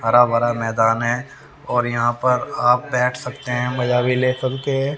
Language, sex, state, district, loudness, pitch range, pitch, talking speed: Hindi, male, Haryana, Rohtak, -19 LUFS, 120-125 Hz, 125 Hz, 195 wpm